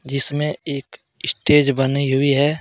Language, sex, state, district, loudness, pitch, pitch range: Hindi, male, Jharkhand, Deoghar, -19 LUFS, 140 Hz, 135-150 Hz